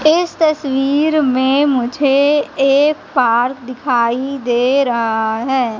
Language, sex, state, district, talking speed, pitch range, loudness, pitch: Hindi, female, Madhya Pradesh, Katni, 105 wpm, 245-290 Hz, -15 LUFS, 270 Hz